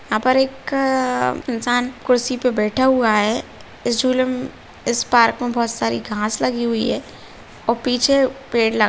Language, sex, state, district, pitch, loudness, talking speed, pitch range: Bhojpuri, female, Uttar Pradesh, Deoria, 245 Hz, -19 LUFS, 180 wpm, 225-255 Hz